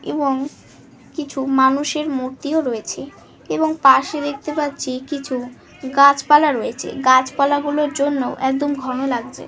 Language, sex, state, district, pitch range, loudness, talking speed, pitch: Bengali, female, West Bengal, Malda, 260-290 Hz, -18 LUFS, 115 wpm, 275 Hz